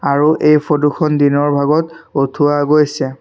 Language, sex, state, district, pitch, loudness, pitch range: Assamese, male, Assam, Sonitpur, 145 Hz, -14 LUFS, 145-150 Hz